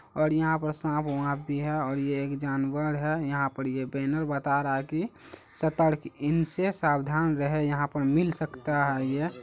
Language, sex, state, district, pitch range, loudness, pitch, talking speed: Hindi, male, Bihar, Araria, 140-155 Hz, -28 LUFS, 145 Hz, 205 wpm